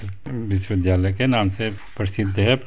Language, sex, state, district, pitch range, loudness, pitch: Hindi, male, Chhattisgarh, Bastar, 95-115 Hz, -22 LUFS, 100 Hz